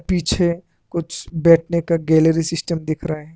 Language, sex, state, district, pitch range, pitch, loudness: Hindi, male, Assam, Kamrup Metropolitan, 160-170 Hz, 165 Hz, -19 LUFS